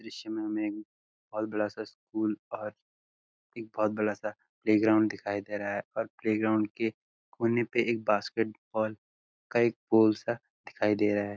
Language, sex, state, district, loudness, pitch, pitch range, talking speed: Hindi, male, Uttarakhand, Uttarkashi, -30 LUFS, 110 Hz, 105-110 Hz, 175 wpm